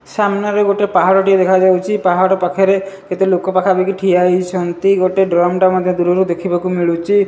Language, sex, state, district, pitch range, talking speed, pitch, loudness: Odia, male, Odisha, Malkangiri, 180-195 Hz, 155 wpm, 185 Hz, -14 LUFS